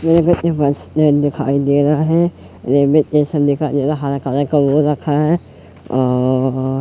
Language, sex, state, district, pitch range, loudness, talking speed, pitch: Hindi, male, Madhya Pradesh, Katni, 140-150 Hz, -16 LUFS, 165 wpm, 145 Hz